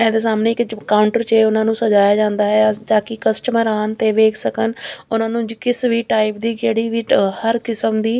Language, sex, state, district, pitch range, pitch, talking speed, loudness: Punjabi, female, Chandigarh, Chandigarh, 215-230 Hz, 225 Hz, 205 wpm, -17 LUFS